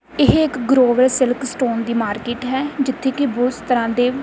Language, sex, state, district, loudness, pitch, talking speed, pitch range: Punjabi, female, Punjab, Kapurthala, -18 LUFS, 255 Hz, 185 wpm, 240-265 Hz